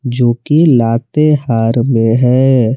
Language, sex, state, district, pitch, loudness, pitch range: Hindi, male, Jharkhand, Palamu, 125 Hz, -11 LUFS, 115-140 Hz